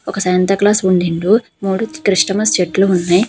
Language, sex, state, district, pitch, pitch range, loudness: Telugu, female, Telangana, Hyderabad, 195 Hz, 180-210 Hz, -14 LUFS